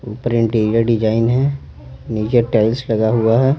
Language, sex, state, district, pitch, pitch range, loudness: Hindi, male, Bihar, Patna, 115 Hz, 110-120 Hz, -16 LUFS